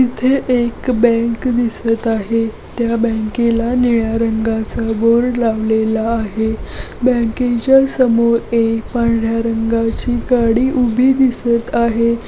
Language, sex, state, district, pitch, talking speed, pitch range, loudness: Marathi, female, Maharashtra, Aurangabad, 235 Hz, 105 wpm, 225-245 Hz, -15 LUFS